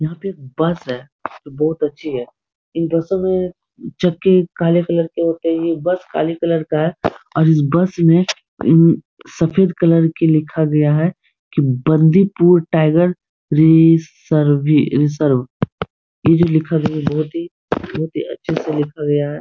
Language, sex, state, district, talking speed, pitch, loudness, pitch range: Hindi, male, Bihar, Supaul, 170 wpm, 160 Hz, -16 LUFS, 150-170 Hz